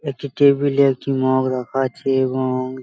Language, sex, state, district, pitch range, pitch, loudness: Bengali, male, West Bengal, Malda, 130-140 Hz, 135 Hz, -19 LUFS